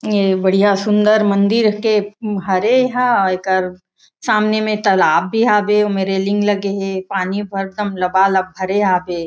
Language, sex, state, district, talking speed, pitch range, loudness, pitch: Chhattisgarhi, female, Chhattisgarh, Raigarh, 140 wpm, 190-210 Hz, -16 LUFS, 200 Hz